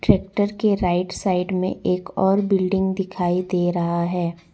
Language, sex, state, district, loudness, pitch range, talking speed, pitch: Hindi, female, Jharkhand, Deoghar, -21 LUFS, 175-195 Hz, 160 wpm, 185 Hz